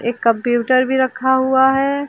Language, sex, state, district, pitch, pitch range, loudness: Hindi, female, Uttar Pradesh, Lucknow, 260 Hz, 240-265 Hz, -16 LUFS